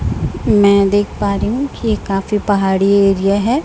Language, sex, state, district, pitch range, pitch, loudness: Hindi, female, Chhattisgarh, Raipur, 195-210 Hz, 200 Hz, -15 LUFS